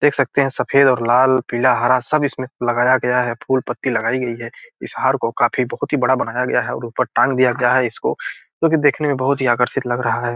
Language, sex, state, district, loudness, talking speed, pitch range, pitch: Hindi, male, Bihar, Gopalganj, -18 LUFS, 240 wpm, 120-135 Hz, 130 Hz